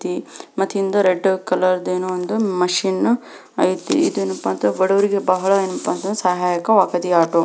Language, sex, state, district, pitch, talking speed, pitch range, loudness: Kannada, female, Karnataka, Belgaum, 185 Hz, 160 wpm, 180-195 Hz, -19 LUFS